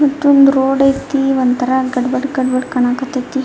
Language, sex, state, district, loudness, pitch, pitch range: Kannada, female, Karnataka, Dharwad, -14 LUFS, 265 Hz, 255-275 Hz